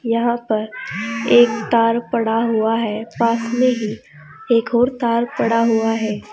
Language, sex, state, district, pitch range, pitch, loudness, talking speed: Hindi, female, Uttar Pradesh, Saharanpur, 220-235 Hz, 230 Hz, -18 LUFS, 150 wpm